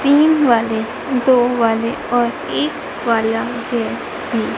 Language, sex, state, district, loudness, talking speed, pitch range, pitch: Hindi, female, Madhya Pradesh, Dhar, -17 LUFS, 120 wpm, 225-255 Hz, 235 Hz